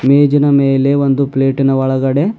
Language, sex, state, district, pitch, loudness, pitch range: Kannada, male, Karnataka, Bidar, 135 Hz, -12 LUFS, 135-140 Hz